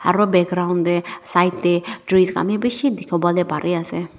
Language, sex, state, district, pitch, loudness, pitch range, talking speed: Nagamese, female, Nagaland, Dimapur, 180 Hz, -19 LUFS, 175-185 Hz, 160 wpm